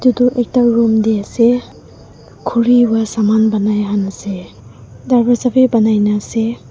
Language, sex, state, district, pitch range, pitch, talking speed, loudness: Nagamese, female, Nagaland, Dimapur, 210-245 Hz, 225 Hz, 145 wpm, -14 LUFS